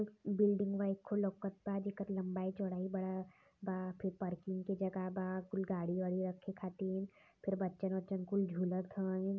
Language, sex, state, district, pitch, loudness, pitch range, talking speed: Hindi, male, Uttar Pradesh, Varanasi, 190 Hz, -40 LUFS, 185-195 Hz, 165 wpm